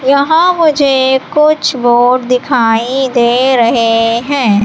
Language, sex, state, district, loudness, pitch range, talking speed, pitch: Hindi, female, Madhya Pradesh, Katni, -10 LUFS, 235-280 Hz, 105 wpm, 255 Hz